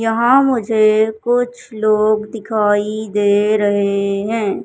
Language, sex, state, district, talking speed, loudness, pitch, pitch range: Hindi, male, Madhya Pradesh, Katni, 105 wpm, -16 LUFS, 215 Hz, 205-225 Hz